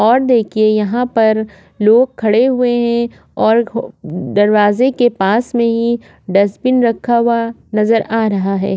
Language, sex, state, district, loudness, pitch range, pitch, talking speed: Hindi, female, Maharashtra, Aurangabad, -14 LUFS, 210-240 Hz, 225 Hz, 145 wpm